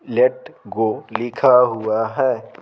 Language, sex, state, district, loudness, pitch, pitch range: Hindi, male, Bihar, Patna, -18 LUFS, 120 Hz, 110-135 Hz